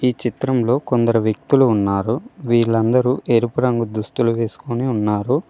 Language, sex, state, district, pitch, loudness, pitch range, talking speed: Telugu, male, Telangana, Mahabubabad, 120 Hz, -18 LUFS, 115-125 Hz, 120 wpm